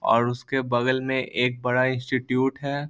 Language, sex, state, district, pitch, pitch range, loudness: Hindi, male, Bihar, Lakhisarai, 130 Hz, 125-130 Hz, -24 LUFS